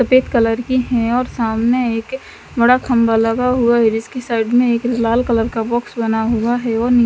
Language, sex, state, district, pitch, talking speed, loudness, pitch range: Hindi, female, Chandigarh, Chandigarh, 235 Hz, 220 wpm, -16 LUFS, 225-250 Hz